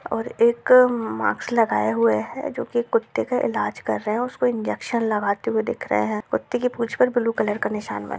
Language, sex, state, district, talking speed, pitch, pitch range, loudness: Hindi, female, Bihar, Darbhanga, 225 wpm, 230 Hz, 180-245 Hz, -22 LUFS